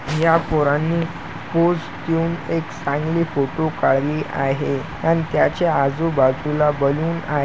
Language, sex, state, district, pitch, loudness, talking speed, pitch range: Marathi, male, Maharashtra, Chandrapur, 155 Hz, -20 LUFS, 115 wpm, 140-165 Hz